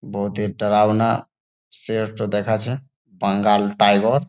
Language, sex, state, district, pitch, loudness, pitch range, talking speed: Bengali, male, West Bengal, Jalpaiguri, 105 Hz, -20 LUFS, 100-115 Hz, 100 wpm